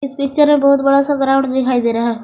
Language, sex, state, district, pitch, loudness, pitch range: Hindi, female, Jharkhand, Garhwa, 275 Hz, -14 LUFS, 255-280 Hz